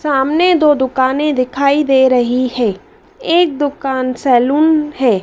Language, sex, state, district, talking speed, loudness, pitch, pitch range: Hindi, female, Madhya Pradesh, Dhar, 125 wpm, -13 LUFS, 275 Hz, 255-300 Hz